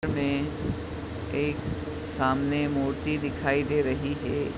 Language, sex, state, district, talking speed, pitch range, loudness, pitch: Hindi, male, Bihar, Madhepura, 120 wpm, 130-145 Hz, -28 LUFS, 140 Hz